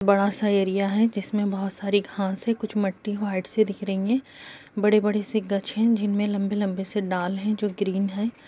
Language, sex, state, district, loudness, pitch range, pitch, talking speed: Hindi, female, Uttar Pradesh, Budaun, -25 LUFS, 195-210 Hz, 205 Hz, 200 wpm